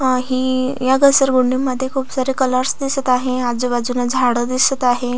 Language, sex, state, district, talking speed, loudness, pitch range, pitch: Marathi, female, Maharashtra, Solapur, 160 wpm, -17 LUFS, 250-265 Hz, 255 Hz